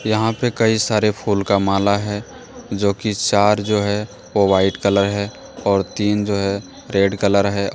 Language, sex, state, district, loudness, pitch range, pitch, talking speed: Hindi, male, Jharkhand, Deoghar, -18 LUFS, 100-105 Hz, 100 Hz, 195 wpm